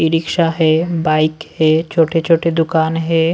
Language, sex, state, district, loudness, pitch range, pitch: Hindi, male, Delhi, New Delhi, -15 LUFS, 160-165 Hz, 165 Hz